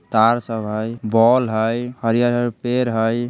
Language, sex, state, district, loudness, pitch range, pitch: Bajjika, male, Bihar, Vaishali, -19 LUFS, 110-120 Hz, 115 Hz